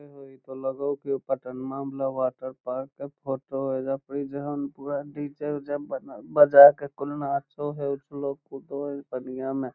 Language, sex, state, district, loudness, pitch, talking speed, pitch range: Magahi, male, Bihar, Lakhisarai, -26 LUFS, 140 Hz, 180 wpm, 135-145 Hz